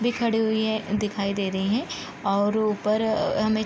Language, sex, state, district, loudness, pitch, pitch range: Hindi, female, Bihar, Gopalganj, -25 LUFS, 215 Hz, 205-220 Hz